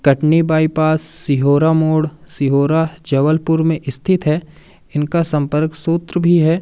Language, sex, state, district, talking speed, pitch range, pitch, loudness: Hindi, male, Madhya Pradesh, Umaria, 125 wpm, 150-165 Hz, 155 Hz, -16 LUFS